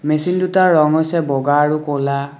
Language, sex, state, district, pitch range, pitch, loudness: Assamese, male, Assam, Kamrup Metropolitan, 145-170 Hz, 150 Hz, -16 LUFS